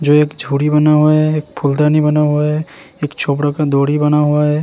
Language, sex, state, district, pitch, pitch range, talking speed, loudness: Hindi, male, Uttarakhand, Tehri Garhwal, 150 Hz, 145-150 Hz, 220 wpm, -14 LUFS